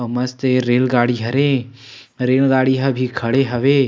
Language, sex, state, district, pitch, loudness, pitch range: Chhattisgarhi, male, Chhattisgarh, Sarguja, 130 Hz, -17 LUFS, 125-135 Hz